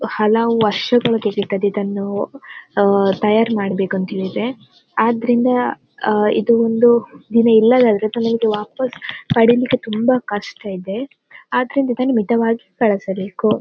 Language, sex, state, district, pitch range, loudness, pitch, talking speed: Kannada, female, Karnataka, Dakshina Kannada, 205-240 Hz, -17 LUFS, 225 Hz, 100 wpm